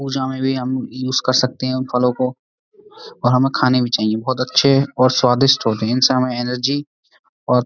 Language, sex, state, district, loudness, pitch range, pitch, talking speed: Hindi, male, Uttar Pradesh, Budaun, -17 LUFS, 125-135 Hz, 130 Hz, 205 wpm